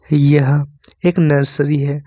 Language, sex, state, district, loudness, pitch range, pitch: Hindi, male, Jharkhand, Ranchi, -15 LUFS, 145-150 Hz, 145 Hz